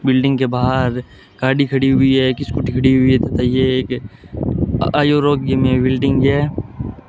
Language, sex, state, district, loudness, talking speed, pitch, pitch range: Hindi, male, Rajasthan, Bikaner, -16 LUFS, 160 wpm, 130 Hz, 125-135 Hz